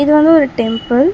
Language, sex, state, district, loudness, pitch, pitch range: Tamil, female, Tamil Nadu, Chennai, -12 LUFS, 280 Hz, 240-305 Hz